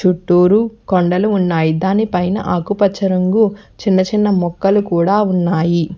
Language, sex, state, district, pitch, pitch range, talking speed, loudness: Telugu, female, Telangana, Hyderabad, 190 Hz, 175-205 Hz, 120 wpm, -15 LUFS